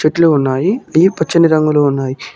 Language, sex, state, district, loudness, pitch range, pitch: Telugu, male, Telangana, Mahabubabad, -13 LUFS, 140-170 Hz, 155 Hz